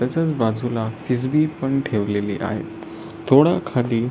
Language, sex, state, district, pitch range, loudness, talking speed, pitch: Marathi, male, Maharashtra, Solapur, 110-135 Hz, -21 LUFS, 115 wpm, 125 Hz